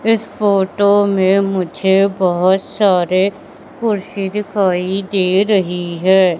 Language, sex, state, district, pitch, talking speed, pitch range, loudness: Hindi, female, Madhya Pradesh, Katni, 195 Hz, 105 wpm, 185-205 Hz, -15 LUFS